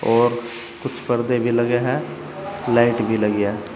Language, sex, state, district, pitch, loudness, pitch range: Hindi, male, Uttar Pradesh, Saharanpur, 120 Hz, -20 LUFS, 115-120 Hz